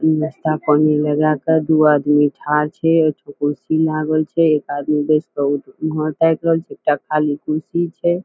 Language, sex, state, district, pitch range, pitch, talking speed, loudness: Maithili, female, Bihar, Saharsa, 150-160 Hz, 155 Hz, 130 wpm, -17 LUFS